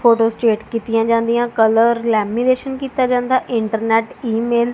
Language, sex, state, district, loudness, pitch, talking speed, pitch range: Punjabi, female, Punjab, Kapurthala, -17 LUFS, 230 Hz, 125 wpm, 225-245 Hz